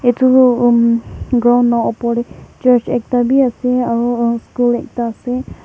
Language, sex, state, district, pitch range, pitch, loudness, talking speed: Nagamese, female, Nagaland, Kohima, 235-250 Hz, 245 Hz, -14 LUFS, 160 wpm